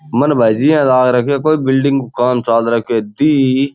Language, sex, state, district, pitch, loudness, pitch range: Rajasthani, male, Rajasthan, Churu, 130 Hz, -13 LUFS, 120-140 Hz